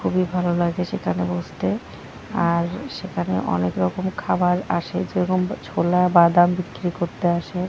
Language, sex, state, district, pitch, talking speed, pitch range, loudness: Bengali, female, West Bengal, North 24 Parganas, 175 Hz, 135 wpm, 170-180 Hz, -22 LUFS